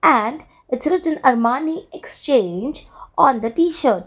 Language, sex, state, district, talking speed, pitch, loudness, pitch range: English, female, Gujarat, Valsad, 120 wpm, 270 Hz, -19 LUFS, 245-325 Hz